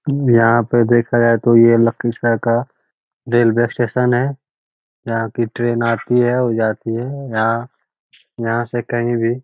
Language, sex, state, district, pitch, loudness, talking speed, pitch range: Magahi, male, Bihar, Lakhisarai, 120 Hz, -16 LUFS, 160 wpm, 115-120 Hz